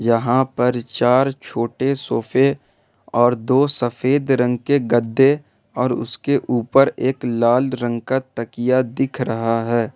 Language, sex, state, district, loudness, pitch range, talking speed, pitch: Hindi, male, Jharkhand, Ranchi, -19 LUFS, 120-135 Hz, 130 wpm, 125 Hz